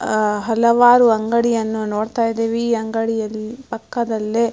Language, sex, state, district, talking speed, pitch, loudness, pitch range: Kannada, female, Karnataka, Mysore, 120 wpm, 225 Hz, -18 LUFS, 220-235 Hz